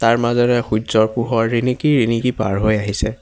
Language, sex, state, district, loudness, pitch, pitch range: Assamese, male, Assam, Hailakandi, -17 LUFS, 115 Hz, 110-120 Hz